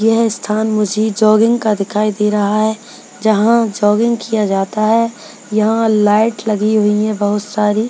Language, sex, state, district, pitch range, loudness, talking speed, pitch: Hindi, female, Bihar, Purnia, 210-225 Hz, -14 LUFS, 160 wpm, 215 Hz